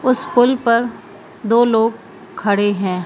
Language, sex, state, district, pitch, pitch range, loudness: Hindi, female, Madhya Pradesh, Umaria, 230 Hz, 205-245 Hz, -16 LUFS